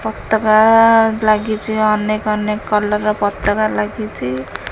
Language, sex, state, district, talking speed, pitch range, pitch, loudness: Odia, female, Odisha, Khordha, 90 wpm, 210-220 Hz, 215 Hz, -15 LUFS